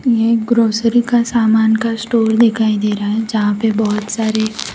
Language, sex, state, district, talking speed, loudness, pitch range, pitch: Hindi, female, Gujarat, Valsad, 200 wpm, -15 LUFS, 220-230 Hz, 225 Hz